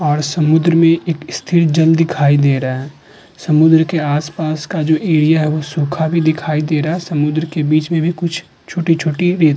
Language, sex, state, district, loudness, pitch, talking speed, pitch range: Hindi, female, Uttar Pradesh, Hamirpur, -15 LUFS, 160 Hz, 205 wpm, 150-165 Hz